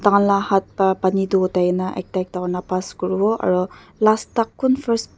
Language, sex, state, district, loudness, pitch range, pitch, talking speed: Nagamese, female, Nagaland, Dimapur, -20 LUFS, 185-215 Hz, 190 Hz, 255 wpm